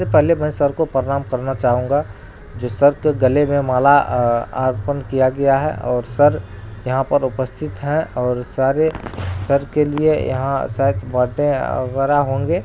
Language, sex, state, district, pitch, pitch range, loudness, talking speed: Hindi, male, Bihar, Araria, 135 Hz, 125-145 Hz, -18 LUFS, 165 wpm